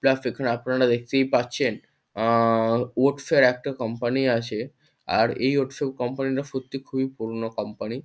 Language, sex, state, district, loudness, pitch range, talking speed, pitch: Bengali, male, West Bengal, Kolkata, -24 LUFS, 115-135 Hz, 165 wpm, 125 Hz